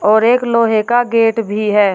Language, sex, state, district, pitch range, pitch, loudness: Hindi, female, Uttar Pradesh, Shamli, 210-235 Hz, 225 Hz, -13 LUFS